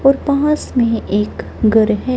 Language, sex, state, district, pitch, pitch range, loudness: Hindi, male, Punjab, Kapurthala, 240 Hz, 215-275 Hz, -16 LUFS